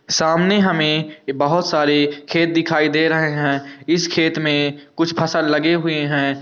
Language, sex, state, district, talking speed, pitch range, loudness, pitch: Hindi, male, Bihar, Muzaffarpur, 160 wpm, 145-165 Hz, -18 LUFS, 155 Hz